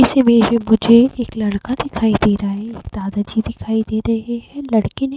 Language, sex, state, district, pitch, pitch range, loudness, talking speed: Hindi, female, Uttar Pradesh, Jyotiba Phule Nagar, 225 Hz, 215-240 Hz, -17 LUFS, 220 wpm